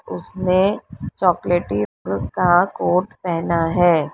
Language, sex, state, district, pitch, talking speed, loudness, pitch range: Hindi, female, Uttar Pradesh, Lalitpur, 175 Hz, 85 wpm, -19 LUFS, 165-180 Hz